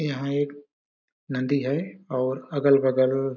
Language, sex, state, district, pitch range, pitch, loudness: Hindi, male, Chhattisgarh, Balrampur, 130-145 Hz, 140 Hz, -25 LUFS